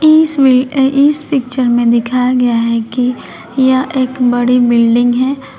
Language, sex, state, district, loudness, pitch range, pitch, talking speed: Hindi, female, Uttar Pradesh, Shamli, -12 LUFS, 240-270 Hz, 255 Hz, 160 wpm